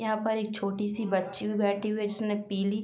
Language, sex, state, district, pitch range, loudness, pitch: Hindi, female, Uttar Pradesh, Jyotiba Phule Nagar, 200-215 Hz, -30 LUFS, 210 Hz